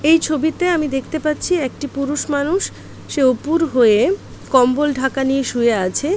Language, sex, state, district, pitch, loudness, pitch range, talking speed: Bengali, female, West Bengal, Paschim Medinipur, 285 Hz, -18 LUFS, 265-315 Hz, 155 wpm